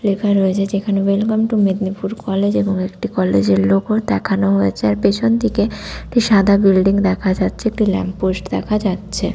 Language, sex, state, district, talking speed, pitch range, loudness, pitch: Bengali, female, West Bengal, Paschim Medinipur, 175 wpm, 190-210 Hz, -17 LUFS, 195 Hz